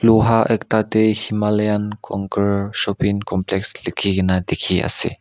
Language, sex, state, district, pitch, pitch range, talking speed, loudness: Nagamese, male, Nagaland, Kohima, 105 Hz, 100-110 Hz, 125 wpm, -19 LUFS